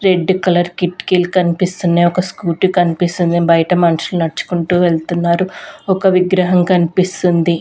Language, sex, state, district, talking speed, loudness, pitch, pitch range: Telugu, female, Andhra Pradesh, Sri Satya Sai, 110 wpm, -14 LUFS, 180 Hz, 170-185 Hz